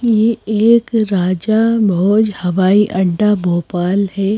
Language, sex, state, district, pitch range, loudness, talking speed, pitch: Hindi, female, Madhya Pradesh, Bhopal, 185-220 Hz, -14 LUFS, 110 wpm, 205 Hz